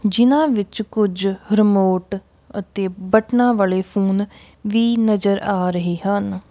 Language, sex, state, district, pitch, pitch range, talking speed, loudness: Punjabi, female, Punjab, Kapurthala, 200 Hz, 190-220 Hz, 120 wpm, -18 LUFS